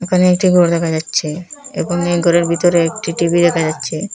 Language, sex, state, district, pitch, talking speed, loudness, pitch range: Bengali, female, Assam, Hailakandi, 170 Hz, 190 wpm, -15 LUFS, 165-180 Hz